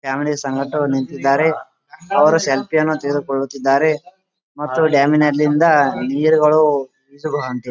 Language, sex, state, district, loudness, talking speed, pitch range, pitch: Kannada, male, Karnataka, Gulbarga, -16 LUFS, 95 wpm, 135-155 Hz, 145 Hz